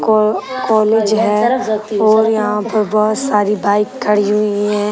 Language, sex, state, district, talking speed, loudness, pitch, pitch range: Hindi, female, Uttar Pradesh, Gorakhpur, 145 wpm, -14 LUFS, 215 Hz, 210-220 Hz